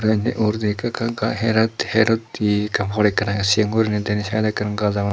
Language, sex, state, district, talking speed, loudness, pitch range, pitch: Chakma, male, Tripura, Dhalai, 235 wpm, -20 LUFS, 105-110 Hz, 105 Hz